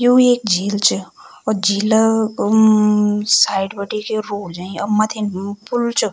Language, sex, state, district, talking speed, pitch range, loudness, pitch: Garhwali, female, Uttarakhand, Tehri Garhwal, 165 wpm, 200-220 Hz, -17 LUFS, 210 Hz